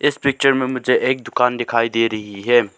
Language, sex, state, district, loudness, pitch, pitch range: Hindi, male, Arunachal Pradesh, Lower Dibang Valley, -18 LUFS, 120 Hz, 115-130 Hz